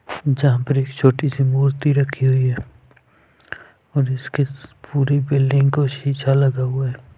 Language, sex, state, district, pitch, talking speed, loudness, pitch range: Hindi, male, Punjab, Fazilka, 135 Hz, 150 wpm, -19 LUFS, 130-140 Hz